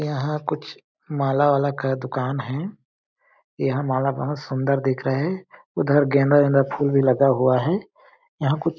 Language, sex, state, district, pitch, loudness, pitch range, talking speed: Hindi, male, Chhattisgarh, Balrampur, 140 Hz, -22 LUFS, 135-150 Hz, 165 wpm